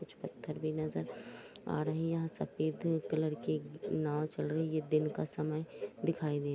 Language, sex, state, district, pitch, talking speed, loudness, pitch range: Hindi, female, Jharkhand, Jamtara, 155 Hz, 190 wpm, -37 LUFS, 150-155 Hz